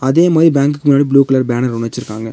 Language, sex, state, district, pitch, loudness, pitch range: Tamil, female, Tamil Nadu, Nilgiris, 135 Hz, -13 LUFS, 120-145 Hz